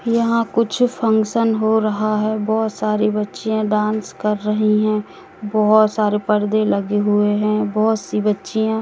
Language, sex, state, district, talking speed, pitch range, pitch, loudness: Hindi, female, Madhya Pradesh, Katni, 150 wpm, 210-220 Hz, 215 Hz, -18 LUFS